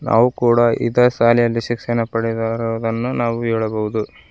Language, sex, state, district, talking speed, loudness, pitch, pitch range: Kannada, female, Karnataka, Koppal, 110 wpm, -18 LUFS, 115 Hz, 115-120 Hz